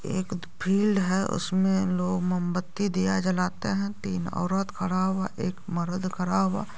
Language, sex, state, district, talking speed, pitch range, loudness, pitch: Hindi, female, Bihar, Madhepura, 150 wpm, 180-195 Hz, -27 LUFS, 185 Hz